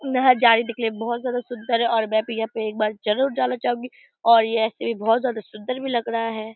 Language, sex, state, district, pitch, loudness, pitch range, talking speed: Hindi, female, Bihar, Purnia, 230 Hz, -22 LUFS, 225-245 Hz, 265 wpm